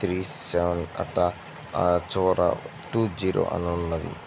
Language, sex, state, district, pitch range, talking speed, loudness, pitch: Telugu, male, Andhra Pradesh, Chittoor, 85-95 Hz, 125 wpm, -26 LUFS, 90 Hz